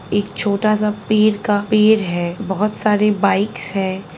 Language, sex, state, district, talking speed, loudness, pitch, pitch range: Hindi, female, Bihar, Sitamarhi, 145 wpm, -17 LUFS, 205 Hz, 195-215 Hz